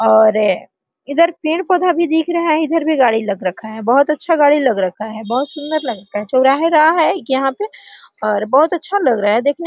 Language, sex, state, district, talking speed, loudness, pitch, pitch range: Hindi, female, Bihar, Araria, 235 wpm, -15 LUFS, 285 Hz, 220-325 Hz